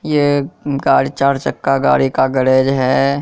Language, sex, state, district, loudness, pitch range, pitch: Hindi, male, Bihar, Kishanganj, -15 LUFS, 130-140 Hz, 135 Hz